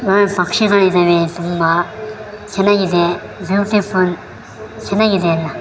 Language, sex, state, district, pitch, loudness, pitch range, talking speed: Kannada, female, Karnataka, Raichur, 185 Hz, -15 LUFS, 170-205 Hz, 75 wpm